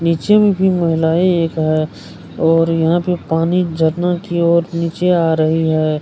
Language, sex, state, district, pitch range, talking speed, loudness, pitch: Hindi, male, Bihar, Kishanganj, 160-175 Hz, 170 wpm, -15 LUFS, 165 Hz